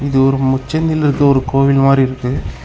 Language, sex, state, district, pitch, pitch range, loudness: Tamil, male, Tamil Nadu, Namakkal, 135 Hz, 135-140 Hz, -14 LUFS